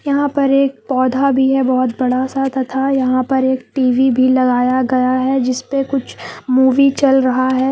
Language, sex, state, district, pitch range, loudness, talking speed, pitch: Hindi, female, Jharkhand, Palamu, 255-270 Hz, -15 LUFS, 195 wpm, 260 Hz